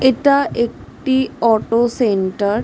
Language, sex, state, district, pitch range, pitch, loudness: Bengali, female, West Bengal, Jhargram, 220-260 Hz, 235 Hz, -17 LUFS